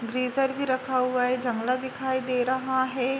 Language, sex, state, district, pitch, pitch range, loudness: Hindi, female, Uttar Pradesh, Jalaun, 260 Hz, 250-260 Hz, -26 LUFS